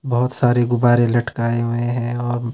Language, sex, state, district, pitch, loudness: Hindi, male, Himachal Pradesh, Shimla, 120 Hz, -18 LUFS